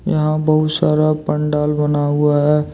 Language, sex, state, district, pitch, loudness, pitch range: Hindi, male, Jharkhand, Deoghar, 150 Hz, -16 LUFS, 150-155 Hz